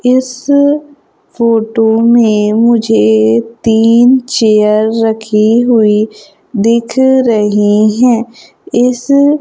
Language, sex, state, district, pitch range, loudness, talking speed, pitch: Hindi, female, Madhya Pradesh, Umaria, 215-250 Hz, -10 LUFS, 75 wpm, 230 Hz